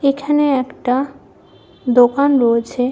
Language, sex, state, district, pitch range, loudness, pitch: Bengali, female, West Bengal, Malda, 245-280 Hz, -15 LUFS, 265 Hz